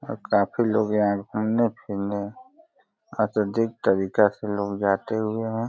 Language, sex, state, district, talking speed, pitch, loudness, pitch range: Hindi, male, Uttar Pradesh, Deoria, 135 wpm, 110 Hz, -24 LUFS, 100-115 Hz